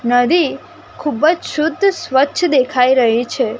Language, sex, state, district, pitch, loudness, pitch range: Gujarati, female, Gujarat, Gandhinagar, 280 Hz, -15 LUFS, 250-330 Hz